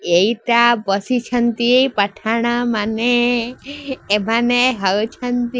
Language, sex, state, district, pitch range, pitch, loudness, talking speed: Odia, female, Odisha, Sambalpur, 215-245 Hz, 235 Hz, -17 LUFS, 65 wpm